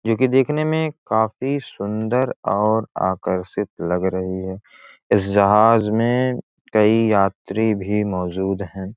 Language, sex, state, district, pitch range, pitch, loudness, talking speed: Hindi, male, Bihar, Gopalganj, 95-115 Hz, 105 Hz, -20 LUFS, 125 wpm